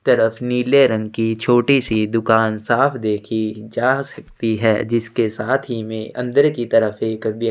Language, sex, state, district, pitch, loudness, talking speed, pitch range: Hindi, male, Chhattisgarh, Sukma, 115 Hz, -18 LUFS, 170 wpm, 110-125 Hz